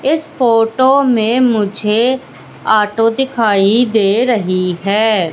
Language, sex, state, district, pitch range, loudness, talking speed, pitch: Hindi, female, Madhya Pradesh, Katni, 210-250 Hz, -13 LUFS, 100 wpm, 225 Hz